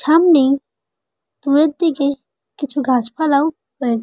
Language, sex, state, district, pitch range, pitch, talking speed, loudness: Bengali, female, West Bengal, Jalpaiguri, 275-310 Hz, 285 Hz, 75 wpm, -17 LUFS